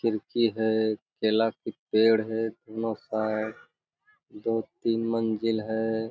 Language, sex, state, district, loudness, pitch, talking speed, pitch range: Hindi, male, Bihar, Jamui, -27 LUFS, 110 Hz, 90 wpm, 110-115 Hz